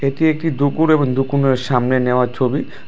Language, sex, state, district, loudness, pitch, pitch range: Bengali, male, Tripura, West Tripura, -17 LUFS, 135 Hz, 130-145 Hz